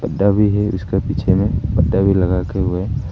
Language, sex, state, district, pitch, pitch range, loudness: Hindi, male, Arunachal Pradesh, Papum Pare, 95 Hz, 90-100 Hz, -17 LUFS